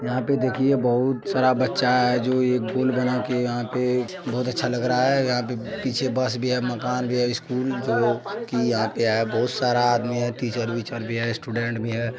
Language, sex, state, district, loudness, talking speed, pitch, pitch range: Maithili, male, Bihar, Supaul, -23 LUFS, 210 wpm, 125 Hz, 120-125 Hz